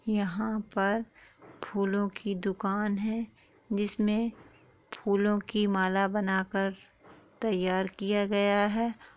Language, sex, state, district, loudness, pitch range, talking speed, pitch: Hindi, female, Jharkhand, Jamtara, -30 LUFS, 195-215 Hz, 100 wpm, 205 Hz